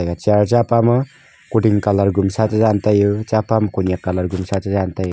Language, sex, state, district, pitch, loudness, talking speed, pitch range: Wancho, male, Arunachal Pradesh, Longding, 105 Hz, -17 LUFS, 165 wpm, 95-110 Hz